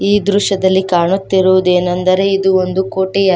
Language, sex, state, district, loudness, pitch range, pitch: Kannada, female, Karnataka, Koppal, -13 LUFS, 185-195 Hz, 190 Hz